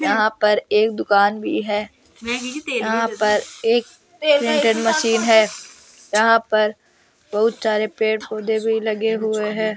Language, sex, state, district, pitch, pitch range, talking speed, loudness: Hindi, female, Rajasthan, Jaipur, 220 Hz, 215-230 Hz, 135 wpm, -19 LUFS